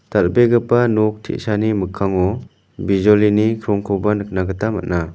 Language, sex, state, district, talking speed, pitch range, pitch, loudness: Garo, male, Meghalaya, West Garo Hills, 105 wpm, 95-110 Hz, 105 Hz, -17 LUFS